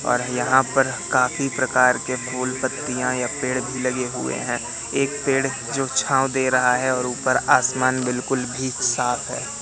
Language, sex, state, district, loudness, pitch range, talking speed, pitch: Hindi, male, Madhya Pradesh, Katni, -21 LUFS, 125-130 Hz, 175 wpm, 130 Hz